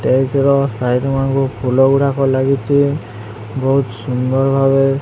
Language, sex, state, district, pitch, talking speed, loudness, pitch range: Odia, male, Odisha, Sambalpur, 135 Hz, 95 wpm, -15 LUFS, 125-135 Hz